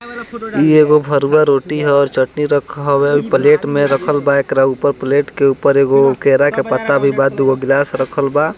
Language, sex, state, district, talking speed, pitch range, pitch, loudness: Bhojpuri, male, Bihar, East Champaran, 195 wpm, 135-150 Hz, 140 Hz, -13 LUFS